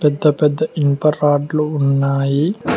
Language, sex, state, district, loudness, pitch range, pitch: Telugu, male, Telangana, Mahabubabad, -16 LUFS, 140-150 Hz, 150 Hz